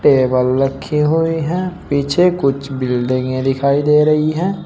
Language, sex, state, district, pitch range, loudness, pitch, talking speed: Hindi, male, Uttar Pradesh, Shamli, 135-160 Hz, -16 LUFS, 140 Hz, 140 wpm